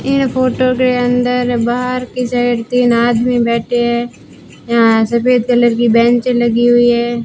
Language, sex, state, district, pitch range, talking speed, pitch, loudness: Hindi, female, Rajasthan, Bikaner, 235-250 Hz, 150 wpm, 240 Hz, -13 LUFS